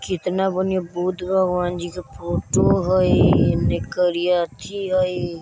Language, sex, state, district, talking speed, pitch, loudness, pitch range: Bajjika, male, Bihar, Vaishali, 130 wpm, 180 Hz, -20 LUFS, 175-185 Hz